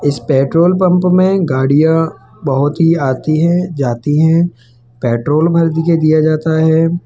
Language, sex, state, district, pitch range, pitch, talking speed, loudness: Hindi, male, Rajasthan, Jaipur, 140-165 Hz, 160 Hz, 145 wpm, -13 LUFS